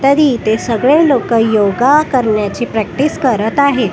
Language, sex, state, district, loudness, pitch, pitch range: Marathi, female, Maharashtra, Washim, -12 LUFS, 240 Hz, 220-280 Hz